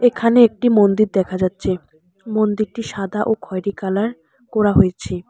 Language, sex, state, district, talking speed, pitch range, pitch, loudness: Bengali, male, West Bengal, Alipurduar, 135 wpm, 190-225 Hz, 210 Hz, -18 LUFS